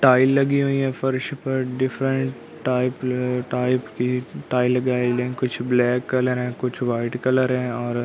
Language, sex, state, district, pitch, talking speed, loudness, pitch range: Hindi, male, Delhi, New Delhi, 125 Hz, 170 wpm, -22 LUFS, 125-130 Hz